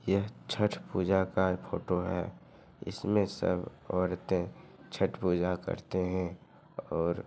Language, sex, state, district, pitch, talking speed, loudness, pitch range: Hindi, male, Bihar, Madhepura, 95 Hz, 125 wpm, -32 LUFS, 90-100 Hz